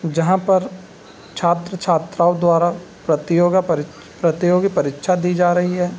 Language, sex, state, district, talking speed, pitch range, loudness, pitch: Hindi, male, Bihar, Gopalganj, 120 wpm, 170-180 Hz, -18 LUFS, 175 Hz